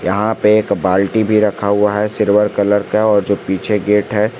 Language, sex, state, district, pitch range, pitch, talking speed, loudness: Hindi, male, Jharkhand, Garhwa, 100-105 Hz, 105 Hz, 220 wpm, -14 LUFS